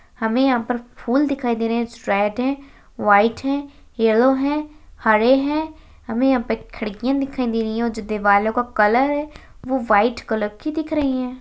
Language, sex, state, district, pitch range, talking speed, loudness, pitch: Hindi, female, Bihar, Jahanabad, 225-275 Hz, 200 wpm, -20 LUFS, 245 Hz